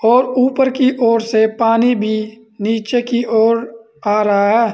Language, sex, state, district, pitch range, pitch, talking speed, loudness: Hindi, male, Uttar Pradesh, Saharanpur, 220-245 Hz, 230 Hz, 165 wpm, -15 LUFS